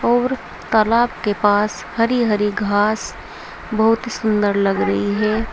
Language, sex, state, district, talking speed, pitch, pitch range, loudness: Hindi, female, Uttar Pradesh, Saharanpur, 140 wpm, 215 Hz, 205-225 Hz, -18 LUFS